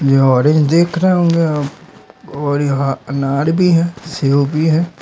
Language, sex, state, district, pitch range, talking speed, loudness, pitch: Hindi, male, Bihar, Darbhanga, 140-170 Hz, 165 wpm, -14 LUFS, 150 Hz